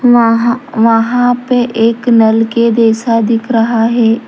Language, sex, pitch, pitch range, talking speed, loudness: Hindi, female, 230 Hz, 225-240 Hz, 140 wpm, -11 LUFS